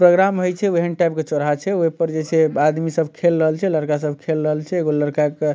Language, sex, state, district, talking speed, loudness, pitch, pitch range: Maithili, male, Bihar, Supaul, 270 wpm, -19 LUFS, 160 Hz, 150-175 Hz